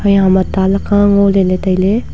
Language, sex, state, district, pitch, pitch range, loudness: Wancho, female, Arunachal Pradesh, Longding, 195 Hz, 190-200 Hz, -12 LUFS